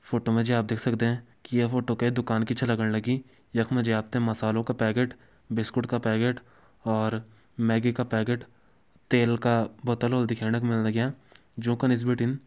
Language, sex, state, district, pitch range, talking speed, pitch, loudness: Garhwali, male, Uttarakhand, Uttarkashi, 110-125 Hz, 200 wpm, 120 Hz, -27 LUFS